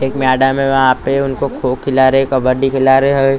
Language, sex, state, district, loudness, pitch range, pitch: Hindi, male, Maharashtra, Gondia, -13 LUFS, 130-135 Hz, 135 Hz